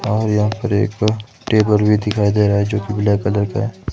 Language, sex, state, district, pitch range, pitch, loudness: Hindi, male, Himachal Pradesh, Shimla, 105-110 Hz, 105 Hz, -17 LUFS